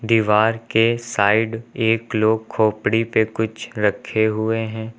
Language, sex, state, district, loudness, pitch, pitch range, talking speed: Hindi, male, Uttar Pradesh, Lucknow, -19 LUFS, 110 Hz, 110-115 Hz, 130 wpm